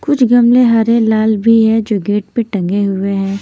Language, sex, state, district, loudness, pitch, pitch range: Hindi, female, Maharashtra, Mumbai Suburban, -12 LUFS, 220 Hz, 200-235 Hz